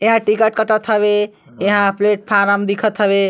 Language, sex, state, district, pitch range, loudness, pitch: Chhattisgarhi, female, Chhattisgarh, Sarguja, 200-215 Hz, -16 LUFS, 210 Hz